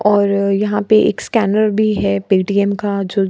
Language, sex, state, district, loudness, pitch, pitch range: Hindi, female, Bihar, Kishanganj, -15 LUFS, 200 Hz, 200-210 Hz